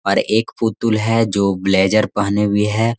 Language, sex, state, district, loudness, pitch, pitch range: Hindi, male, Bihar, Gaya, -17 LUFS, 105 Hz, 100-115 Hz